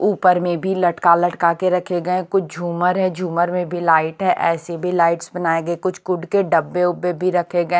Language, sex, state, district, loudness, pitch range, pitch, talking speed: Hindi, female, Punjab, Kapurthala, -19 LUFS, 170-180 Hz, 175 Hz, 240 wpm